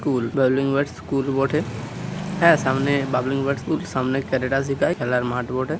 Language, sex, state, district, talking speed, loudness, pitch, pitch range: Bengali, male, West Bengal, Purulia, 185 wpm, -22 LUFS, 135 Hz, 130-140 Hz